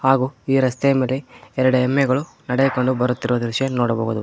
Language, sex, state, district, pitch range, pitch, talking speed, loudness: Kannada, male, Karnataka, Koppal, 125-135 Hz, 130 Hz, 140 wpm, -20 LUFS